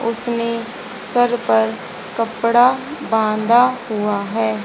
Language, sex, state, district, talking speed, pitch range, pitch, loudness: Hindi, female, Haryana, Charkhi Dadri, 90 wpm, 210-240 Hz, 230 Hz, -18 LUFS